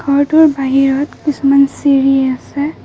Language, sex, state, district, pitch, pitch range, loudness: Assamese, female, Assam, Kamrup Metropolitan, 280 Hz, 270-290 Hz, -12 LUFS